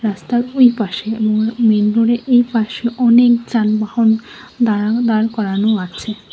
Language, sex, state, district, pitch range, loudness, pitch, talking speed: Bengali, female, Tripura, West Tripura, 215-240 Hz, -15 LUFS, 225 Hz, 115 wpm